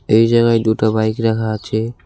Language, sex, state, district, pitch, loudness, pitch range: Bengali, male, West Bengal, Cooch Behar, 110 Hz, -16 LUFS, 110-115 Hz